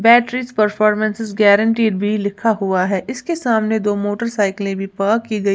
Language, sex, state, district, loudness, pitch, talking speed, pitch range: Hindi, female, Uttar Pradesh, Lalitpur, -17 LUFS, 215 Hz, 160 wpm, 200-225 Hz